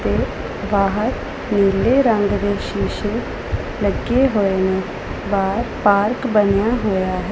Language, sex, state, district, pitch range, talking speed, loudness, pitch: Punjabi, female, Punjab, Pathankot, 195-225 Hz, 105 wpm, -19 LUFS, 205 Hz